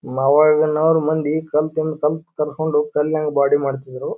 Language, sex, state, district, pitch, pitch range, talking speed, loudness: Kannada, male, Karnataka, Bijapur, 150 Hz, 150-155 Hz, 145 wpm, -18 LUFS